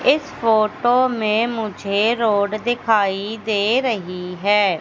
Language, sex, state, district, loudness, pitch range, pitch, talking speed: Hindi, female, Madhya Pradesh, Katni, -19 LUFS, 200-235 Hz, 215 Hz, 110 wpm